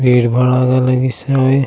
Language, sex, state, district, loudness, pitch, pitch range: Chhattisgarhi, male, Chhattisgarh, Raigarh, -14 LUFS, 130 Hz, 125-130 Hz